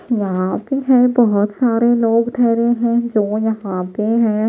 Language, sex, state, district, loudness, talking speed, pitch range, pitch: Hindi, female, Bihar, Patna, -16 LUFS, 160 wpm, 210-240 Hz, 230 Hz